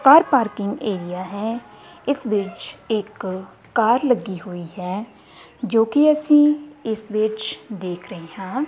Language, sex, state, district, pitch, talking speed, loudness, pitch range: Punjabi, female, Punjab, Kapurthala, 220 Hz, 130 wpm, -21 LUFS, 190-255 Hz